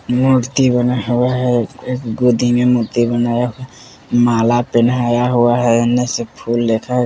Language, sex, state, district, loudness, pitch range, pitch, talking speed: Hindi, male, Bihar, West Champaran, -15 LUFS, 120-125 Hz, 120 Hz, 145 wpm